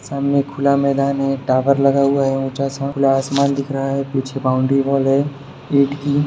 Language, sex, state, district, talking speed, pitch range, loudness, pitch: Hindi, male, Bihar, Sitamarhi, 200 wpm, 135-140 Hz, -18 LUFS, 140 Hz